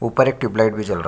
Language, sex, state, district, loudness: Hindi, male, Bihar, Bhagalpur, -19 LUFS